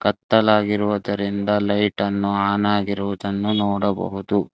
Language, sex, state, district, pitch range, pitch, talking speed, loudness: Kannada, male, Karnataka, Bangalore, 100-105 Hz, 100 Hz, 65 wpm, -20 LUFS